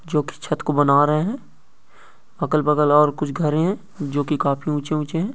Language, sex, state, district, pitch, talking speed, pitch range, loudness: Hindi, male, Bihar, East Champaran, 150 Hz, 225 wpm, 145-165 Hz, -20 LUFS